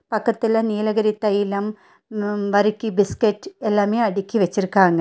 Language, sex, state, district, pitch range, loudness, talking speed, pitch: Tamil, female, Tamil Nadu, Nilgiris, 205-225 Hz, -20 LUFS, 110 wpm, 210 Hz